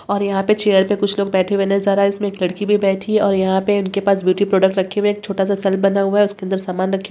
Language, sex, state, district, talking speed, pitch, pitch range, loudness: Hindi, female, Bihar, Jamui, 335 wpm, 200 Hz, 190-205 Hz, -17 LUFS